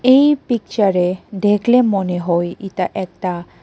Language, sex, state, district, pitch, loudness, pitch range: Bengali, female, Tripura, West Tripura, 195 Hz, -17 LUFS, 180-235 Hz